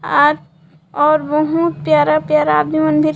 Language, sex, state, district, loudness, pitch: Chhattisgarhi, female, Chhattisgarh, Jashpur, -14 LUFS, 300 Hz